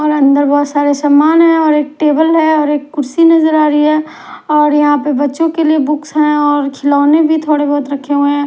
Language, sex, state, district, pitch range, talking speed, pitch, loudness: Hindi, female, Punjab, Fazilka, 290-310 Hz, 235 wpm, 295 Hz, -11 LUFS